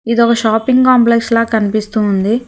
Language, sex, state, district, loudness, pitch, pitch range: Telugu, female, Telangana, Hyderabad, -12 LUFS, 230 Hz, 215-235 Hz